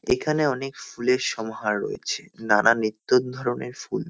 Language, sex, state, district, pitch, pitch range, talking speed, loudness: Bengali, male, West Bengal, North 24 Parganas, 125 Hz, 110-135 Hz, 130 wpm, -24 LUFS